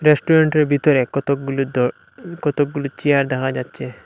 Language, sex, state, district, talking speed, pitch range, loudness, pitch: Bengali, male, Assam, Hailakandi, 120 wpm, 135-150 Hz, -18 LUFS, 140 Hz